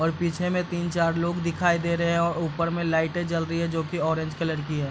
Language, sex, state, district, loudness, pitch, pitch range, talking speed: Hindi, male, Bihar, East Champaran, -26 LUFS, 170 Hz, 160-170 Hz, 280 wpm